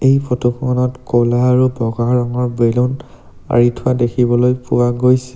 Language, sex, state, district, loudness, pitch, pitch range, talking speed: Assamese, male, Assam, Sonitpur, -15 LUFS, 125 Hz, 120-125 Hz, 135 wpm